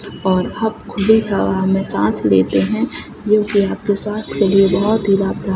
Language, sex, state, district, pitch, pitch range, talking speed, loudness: Hindi, female, Uttar Pradesh, Jalaun, 200 Hz, 190-210 Hz, 175 wpm, -16 LUFS